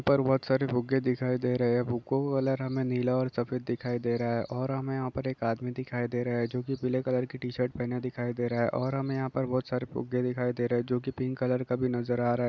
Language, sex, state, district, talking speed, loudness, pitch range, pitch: Hindi, male, Chhattisgarh, Balrampur, 295 wpm, -30 LUFS, 120-130 Hz, 125 Hz